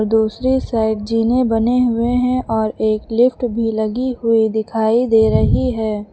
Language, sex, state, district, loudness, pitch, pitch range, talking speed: Hindi, female, Uttar Pradesh, Lucknow, -17 LUFS, 225 Hz, 220-245 Hz, 155 wpm